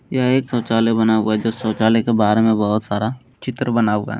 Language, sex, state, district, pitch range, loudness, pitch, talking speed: Hindi, male, Bihar, Jamui, 110-120 Hz, -18 LUFS, 115 Hz, 240 wpm